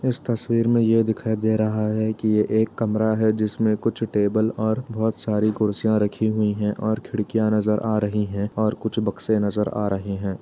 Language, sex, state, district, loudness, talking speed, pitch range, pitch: Hindi, male, Uttar Pradesh, Etah, -22 LUFS, 205 wpm, 105-110 Hz, 110 Hz